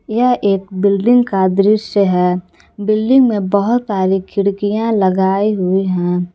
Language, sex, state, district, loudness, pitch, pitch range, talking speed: Hindi, female, Jharkhand, Palamu, -15 LUFS, 200 Hz, 190-215 Hz, 130 wpm